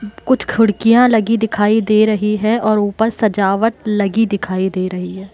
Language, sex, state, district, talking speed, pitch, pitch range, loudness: Hindi, female, Bihar, Muzaffarpur, 170 wpm, 215 Hz, 200-225 Hz, -15 LUFS